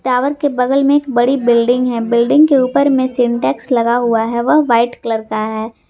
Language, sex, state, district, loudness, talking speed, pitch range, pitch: Hindi, female, Jharkhand, Garhwa, -14 LUFS, 215 wpm, 235-270 Hz, 245 Hz